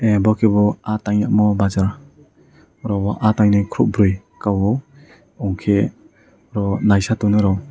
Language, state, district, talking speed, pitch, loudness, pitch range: Kokborok, Tripura, West Tripura, 130 wpm, 105 Hz, -18 LUFS, 100-110 Hz